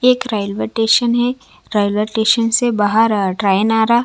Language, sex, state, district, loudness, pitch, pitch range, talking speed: Hindi, female, Chhattisgarh, Raipur, -15 LUFS, 225 Hz, 205-240 Hz, 165 wpm